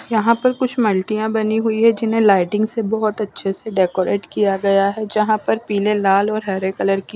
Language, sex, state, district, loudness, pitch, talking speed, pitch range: Hindi, female, Chandigarh, Chandigarh, -18 LUFS, 215 Hz, 220 wpm, 195-220 Hz